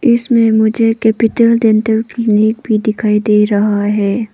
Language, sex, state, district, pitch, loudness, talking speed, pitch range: Hindi, female, Arunachal Pradesh, Papum Pare, 220 Hz, -12 LUFS, 140 wpm, 210-230 Hz